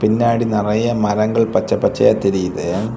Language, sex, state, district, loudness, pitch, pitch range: Tamil, male, Tamil Nadu, Kanyakumari, -17 LUFS, 110 Hz, 105-115 Hz